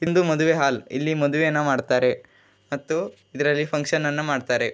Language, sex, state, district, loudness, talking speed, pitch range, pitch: Kannada, male, Karnataka, Raichur, -22 LUFS, 125 wpm, 135-155 Hz, 145 Hz